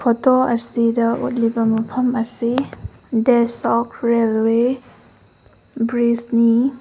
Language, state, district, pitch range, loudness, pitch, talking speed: Manipuri, Manipur, Imphal West, 230-250 Hz, -18 LUFS, 235 Hz, 70 wpm